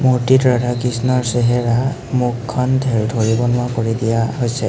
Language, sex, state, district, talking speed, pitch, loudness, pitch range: Assamese, male, Assam, Hailakandi, 140 wpm, 120 Hz, -17 LUFS, 115-125 Hz